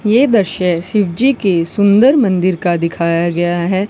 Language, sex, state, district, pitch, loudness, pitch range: Hindi, female, Rajasthan, Bikaner, 185 Hz, -13 LUFS, 175-210 Hz